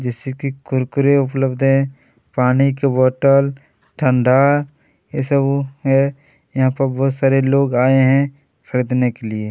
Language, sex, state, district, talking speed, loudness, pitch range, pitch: Hindi, male, Chhattisgarh, Kabirdham, 145 wpm, -17 LUFS, 130-140 Hz, 135 Hz